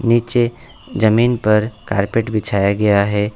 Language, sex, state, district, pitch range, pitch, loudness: Hindi, male, West Bengal, Alipurduar, 105-115 Hz, 110 Hz, -16 LUFS